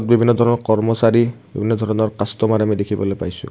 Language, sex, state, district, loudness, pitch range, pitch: Assamese, male, Assam, Kamrup Metropolitan, -18 LUFS, 105-115 Hz, 110 Hz